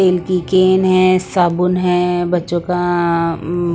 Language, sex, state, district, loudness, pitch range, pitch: Hindi, female, Punjab, Pathankot, -15 LUFS, 175-185 Hz, 180 Hz